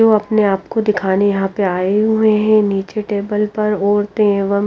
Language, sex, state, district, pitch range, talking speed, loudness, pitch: Hindi, female, Haryana, Rohtak, 200-215 Hz, 195 wpm, -16 LUFS, 205 Hz